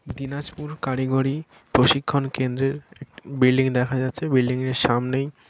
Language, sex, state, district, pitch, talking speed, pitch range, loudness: Bengali, male, West Bengal, Dakshin Dinajpur, 135 Hz, 120 wpm, 130-140 Hz, -23 LUFS